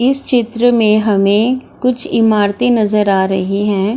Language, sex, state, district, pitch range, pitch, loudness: Hindi, female, Bihar, Gaya, 205-245 Hz, 215 Hz, -13 LUFS